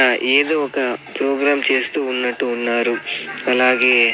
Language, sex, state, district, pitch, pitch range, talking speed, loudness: Telugu, male, Andhra Pradesh, Sri Satya Sai, 125 Hz, 120-135 Hz, 100 wpm, -17 LUFS